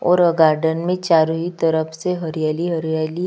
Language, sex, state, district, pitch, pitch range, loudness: Hindi, female, Chhattisgarh, Kabirdham, 165 Hz, 160-175 Hz, -19 LUFS